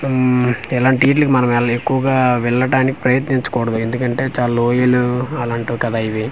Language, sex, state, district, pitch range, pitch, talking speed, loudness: Telugu, male, Andhra Pradesh, Manyam, 120-130 Hz, 125 Hz, 125 wpm, -16 LUFS